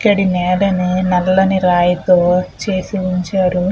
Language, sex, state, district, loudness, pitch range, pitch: Telugu, female, Andhra Pradesh, Chittoor, -15 LUFS, 180-190 Hz, 185 Hz